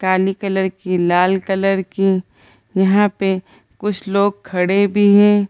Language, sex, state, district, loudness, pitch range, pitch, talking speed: Hindi, female, Bihar, Gaya, -17 LUFS, 190-200 Hz, 195 Hz, 140 wpm